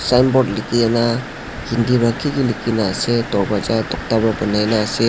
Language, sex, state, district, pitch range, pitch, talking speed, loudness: Nagamese, male, Nagaland, Dimapur, 110-120 Hz, 115 Hz, 140 wpm, -18 LUFS